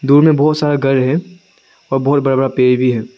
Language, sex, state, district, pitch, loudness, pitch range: Hindi, male, Arunachal Pradesh, Lower Dibang Valley, 135 Hz, -14 LUFS, 130-150 Hz